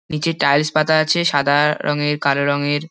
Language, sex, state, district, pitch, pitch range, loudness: Bengali, male, West Bengal, Dakshin Dinajpur, 150 Hz, 145-155 Hz, -17 LUFS